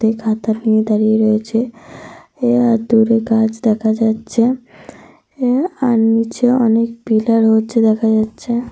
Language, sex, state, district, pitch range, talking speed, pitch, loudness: Bengali, female, Jharkhand, Sahebganj, 220-235 Hz, 105 wpm, 225 Hz, -15 LUFS